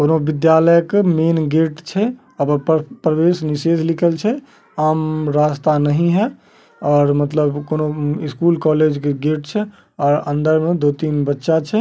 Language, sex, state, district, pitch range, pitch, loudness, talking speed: Magahi, male, Bihar, Samastipur, 150-170 Hz, 155 Hz, -17 LUFS, 145 wpm